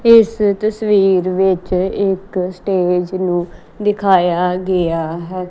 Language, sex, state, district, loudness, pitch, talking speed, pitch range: Punjabi, female, Punjab, Kapurthala, -16 LUFS, 185 Hz, 100 wpm, 180-200 Hz